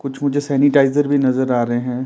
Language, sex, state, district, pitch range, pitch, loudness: Hindi, male, Himachal Pradesh, Shimla, 130-140 Hz, 135 Hz, -17 LUFS